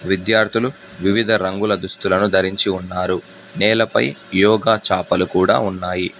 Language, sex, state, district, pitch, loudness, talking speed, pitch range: Telugu, male, Telangana, Hyderabad, 100 Hz, -17 LUFS, 105 wpm, 95-110 Hz